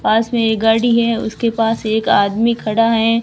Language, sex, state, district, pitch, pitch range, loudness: Hindi, female, Rajasthan, Barmer, 225 Hz, 220-230 Hz, -15 LUFS